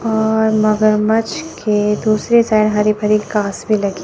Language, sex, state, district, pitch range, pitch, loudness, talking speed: Hindi, female, Chandigarh, Chandigarh, 210-220 Hz, 215 Hz, -15 LUFS, 150 wpm